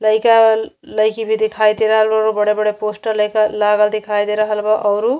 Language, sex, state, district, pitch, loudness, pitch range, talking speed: Bhojpuri, female, Uttar Pradesh, Ghazipur, 215 Hz, -15 LUFS, 210-220 Hz, 210 wpm